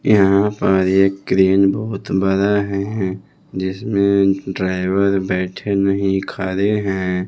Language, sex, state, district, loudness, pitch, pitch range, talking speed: Hindi, male, Bihar, West Champaran, -17 LUFS, 95 Hz, 95-100 Hz, 105 wpm